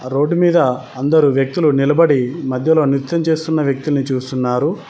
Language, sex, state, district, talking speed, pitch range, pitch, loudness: Telugu, male, Telangana, Mahabubabad, 120 wpm, 130-160 Hz, 140 Hz, -16 LUFS